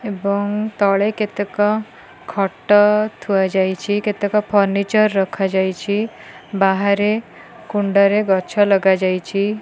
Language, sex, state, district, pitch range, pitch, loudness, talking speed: Odia, female, Odisha, Khordha, 195-210 Hz, 205 Hz, -18 LUFS, 85 wpm